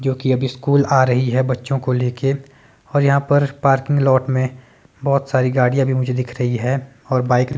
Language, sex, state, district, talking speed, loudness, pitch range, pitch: Hindi, male, Himachal Pradesh, Shimla, 215 wpm, -18 LUFS, 125-135 Hz, 130 Hz